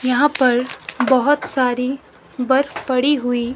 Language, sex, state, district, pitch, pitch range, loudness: Hindi, male, Himachal Pradesh, Shimla, 255 Hz, 250-270 Hz, -18 LUFS